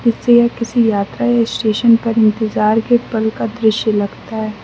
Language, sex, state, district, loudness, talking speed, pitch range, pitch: Hindi, female, Mizoram, Aizawl, -15 LUFS, 170 wpm, 215-235 Hz, 220 Hz